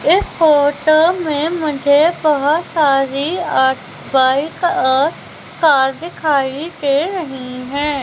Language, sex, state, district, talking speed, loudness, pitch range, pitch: Hindi, female, Madhya Pradesh, Umaria, 105 wpm, -15 LUFS, 275-320 Hz, 295 Hz